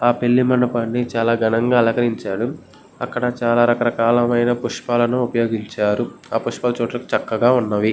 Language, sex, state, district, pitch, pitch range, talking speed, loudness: Telugu, male, Andhra Pradesh, Guntur, 120 Hz, 115-120 Hz, 135 wpm, -19 LUFS